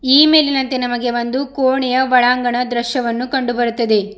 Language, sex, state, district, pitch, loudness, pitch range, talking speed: Kannada, female, Karnataka, Bidar, 250 Hz, -15 LUFS, 240-265 Hz, 130 wpm